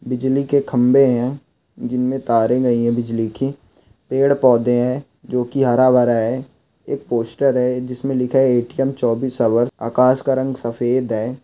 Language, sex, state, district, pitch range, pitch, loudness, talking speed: Hindi, male, Goa, North and South Goa, 120-135 Hz, 125 Hz, -18 LUFS, 165 wpm